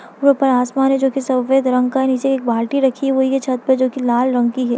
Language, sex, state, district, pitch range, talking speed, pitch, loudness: Hindi, female, Bihar, Lakhisarai, 250-270 Hz, 275 wpm, 260 Hz, -16 LUFS